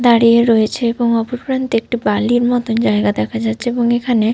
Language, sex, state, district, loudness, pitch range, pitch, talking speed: Bengali, female, Jharkhand, Sahebganj, -15 LUFS, 225-240 Hz, 235 Hz, 180 wpm